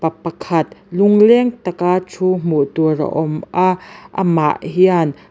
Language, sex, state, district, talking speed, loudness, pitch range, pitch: Mizo, female, Mizoram, Aizawl, 160 wpm, -16 LUFS, 160-185 Hz, 180 Hz